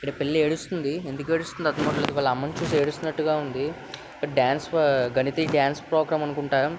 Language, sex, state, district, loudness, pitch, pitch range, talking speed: Telugu, male, Andhra Pradesh, Visakhapatnam, -25 LUFS, 150 Hz, 140-155 Hz, 170 wpm